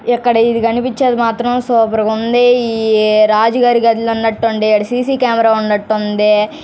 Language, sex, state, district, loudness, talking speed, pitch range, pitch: Telugu, female, Andhra Pradesh, Guntur, -13 LUFS, 125 wpm, 215-240 Hz, 230 Hz